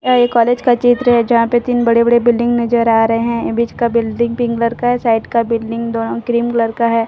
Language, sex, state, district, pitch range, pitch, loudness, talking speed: Hindi, female, Jharkhand, Deoghar, 230-240 Hz, 235 Hz, -14 LUFS, 260 wpm